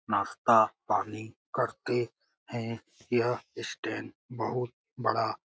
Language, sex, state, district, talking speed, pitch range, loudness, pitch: Hindi, male, Bihar, Lakhisarai, 120 wpm, 110-125 Hz, -31 LUFS, 120 Hz